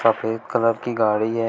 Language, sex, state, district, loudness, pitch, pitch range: Hindi, male, Uttar Pradesh, Shamli, -21 LUFS, 115 Hz, 110-115 Hz